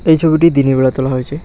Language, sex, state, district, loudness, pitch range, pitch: Bengali, male, West Bengal, Alipurduar, -12 LUFS, 130-160 Hz, 140 Hz